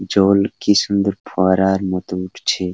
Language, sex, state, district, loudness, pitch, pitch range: Bengali, male, West Bengal, Paschim Medinipur, -17 LUFS, 95 Hz, 95-100 Hz